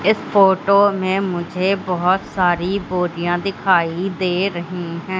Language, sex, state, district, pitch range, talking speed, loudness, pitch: Hindi, female, Madhya Pradesh, Katni, 175-195 Hz, 125 wpm, -18 LUFS, 185 Hz